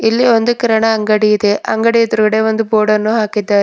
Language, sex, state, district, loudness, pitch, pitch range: Kannada, female, Karnataka, Bidar, -13 LUFS, 220 Hz, 215-225 Hz